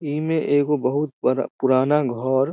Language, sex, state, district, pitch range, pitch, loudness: Maithili, male, Bihar, Samastipur, 130-150 Hz, 140 Hz, -21 LUFS